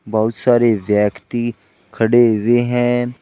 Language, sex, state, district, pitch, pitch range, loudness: Hindi, male, Uttar Pradesh, Shamli, 115 Hz, 110-120 Hz, -16 LUFS